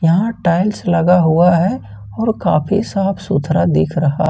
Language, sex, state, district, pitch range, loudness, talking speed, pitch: Hindi, male, Jharkhand, Ranchi, 155-195 Hz, -15 LUFS, 155 wpm, 175 Hz